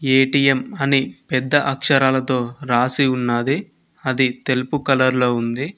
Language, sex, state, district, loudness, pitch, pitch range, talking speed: Telugu, male, Telangana, Mahabubabad, -18 LUFS, 130 Hz, 125-140 Hz, 115 wpm